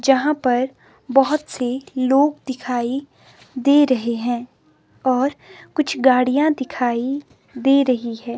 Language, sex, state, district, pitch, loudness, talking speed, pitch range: Hindi, female, Himachal Pradesh, Shimla, 260 Hz, -19 LUFS, 115 wpm, 245-275 Hz